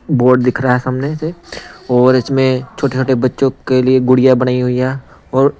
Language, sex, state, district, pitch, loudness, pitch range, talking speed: Hindi, male, Punjab, Pathankot, 130 Hz, -14 LUFS, 125-135 Hz, 180 wpm